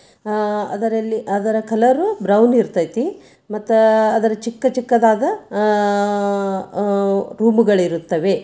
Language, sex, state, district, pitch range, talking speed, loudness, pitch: Kannada, female, Karnataka, Dharwad, 200-225 Hz, 70 wpm, -17 LUFS, 220 Hz